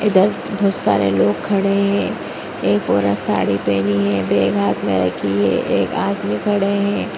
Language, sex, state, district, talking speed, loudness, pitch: Hindi, female, Chhattisgarh, Bastar, 165 wpm, -18 LUFS, 100 Hz